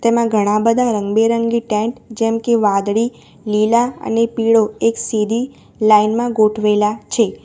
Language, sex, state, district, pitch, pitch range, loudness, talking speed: Gujarati, female, Gujarat, Valsad, 225 Hz, 215-230 Hz, -16 LUFS, 130 wpm